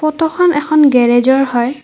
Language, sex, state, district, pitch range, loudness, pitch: Assamese, female, Assam, Kamrup Metropolitan, 250-310 Hz, -12 LUFS, 280 Hz